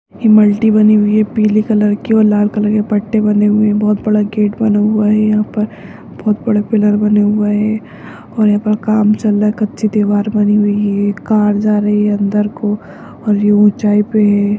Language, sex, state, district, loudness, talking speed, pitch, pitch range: Hindi, female, Uttarakhand, Tehri Garhwal, -13 LUFS, 215 wpm, 210 Hz, 210-215 Hz